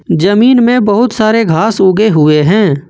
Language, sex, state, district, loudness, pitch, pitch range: Hindi, male, Jharkhand, Ranchi, -9 LUFS, 210 Hz, 165-225 Hz